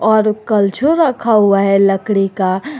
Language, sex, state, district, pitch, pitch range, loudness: Hindi, female, Jharkhand, Garhwa, 210 Hz, 195-230 Hz, -13 LUFS